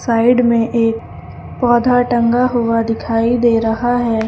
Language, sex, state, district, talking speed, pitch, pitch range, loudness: Hindi, female, Uttar Pradesh, Lucknow, 140 wpm, 235 Hz, 225-245 Hz, -14 LUFS